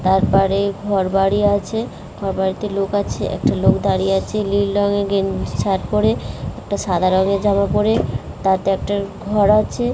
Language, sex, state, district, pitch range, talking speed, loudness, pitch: Bengali, female, West Bengal, Dakshin Dinajpur, 195-205 Hz, 155 wpm, -18 LUFS, 200 Hz